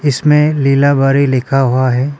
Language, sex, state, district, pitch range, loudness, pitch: Hindi, male, Arunachal Pradesh, Papum Pare, 130-145 Hz, -12 LUFS, 140 Hz